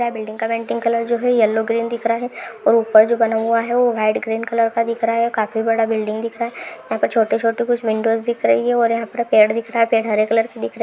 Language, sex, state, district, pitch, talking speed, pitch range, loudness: Hindi, female, Rajasthan, Churu, 230 Hz, 300 wpm, 220-235 Hz, -18 LUFS